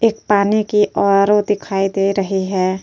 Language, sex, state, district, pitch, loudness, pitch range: Hindi, female, Uttar Pradesh, Jyotiba Phule Nagar, 200 Hz, -16 LUFS, 195-210 Hz